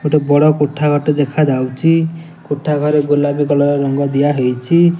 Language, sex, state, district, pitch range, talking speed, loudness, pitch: Odia, male, Odisha, Nuapada, 145-150 Hz, 170 wpm, -14 LUFS, 145 Hz